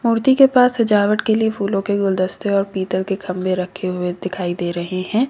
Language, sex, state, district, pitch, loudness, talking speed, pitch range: Hindi, female, Uttar Pradesh, Lalitpur, 195 Hz, -18 LUFS, 215 wpm, 185-220 Hz